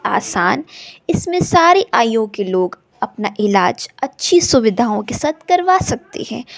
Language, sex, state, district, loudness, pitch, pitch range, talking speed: Hindi, female, Bihar, West Champaran, -16 LUFS, 265 Hz, 210-350 Hz, 135 wpm